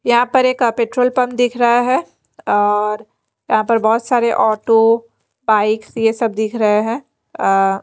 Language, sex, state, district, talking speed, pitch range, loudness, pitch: Hindi, female, Bihar, Patna, 170 wpm, 215-245 Hz, -16 LUFS, 230 Hz